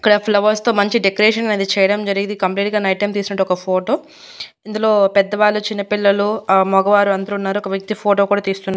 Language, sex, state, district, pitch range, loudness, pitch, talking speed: Telugu, female, Andhra Pradesh, Annamaya, 195-210 Hz, -16 LUFS, 205 Hz, 190 wpm